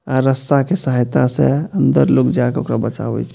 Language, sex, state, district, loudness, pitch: Maithili, male, Bihar, Purnia, -16 LUFS, 130 Hz